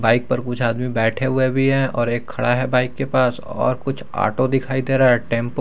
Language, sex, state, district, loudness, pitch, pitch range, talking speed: Hindi, male, Jharkhand, Garhwa, -19 LUFS, 125 Hz, 120-130 Hz, 255 wpm